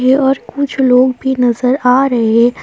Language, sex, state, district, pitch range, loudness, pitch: Hindi, female, Jharkhand, Palamu, 245-265 Hz, -12 LUFS, 255 Hz